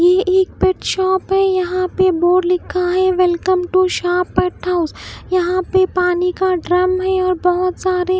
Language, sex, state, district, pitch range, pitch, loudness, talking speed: Hindi, female, Bihar, West Champaran, 360-370 Hz, 365 Hz, -16 LUFS, 175 wpm